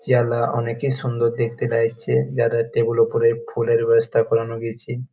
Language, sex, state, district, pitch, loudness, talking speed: Bengali, male, West Bengal, Jalpaiguri, 120 Hz, -20 LUFS, 165 wpm